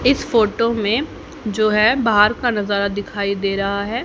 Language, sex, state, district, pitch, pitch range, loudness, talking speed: Hindi, female, Haryana, Jhajjar, 215 Hz, 200-235 Hz, -18 LUFS, 175 wpm